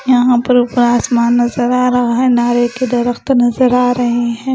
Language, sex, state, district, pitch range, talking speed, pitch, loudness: Hindi, female, Punjab, Pathankot, 240-250 Hz, 200 wpm, 245 Hz, -13 LUFS